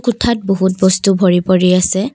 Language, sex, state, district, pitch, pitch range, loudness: Assamese, female, Assam, Kamrup Metropolitan, 190 Hz, 185-205 Hz, -13 LUFS